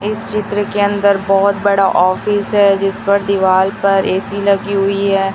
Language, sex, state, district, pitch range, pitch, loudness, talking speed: Hindi, female, Chhattisgarh, Raipur, 195-205 Hz, 200 Hz, -14 LUFS, 180 wpm